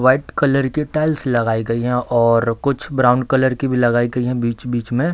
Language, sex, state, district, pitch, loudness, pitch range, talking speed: Hindi, male, Bihar, Darbhanga, 125 Hz, -18 LUFS, 120-135 Hz, 210 wpm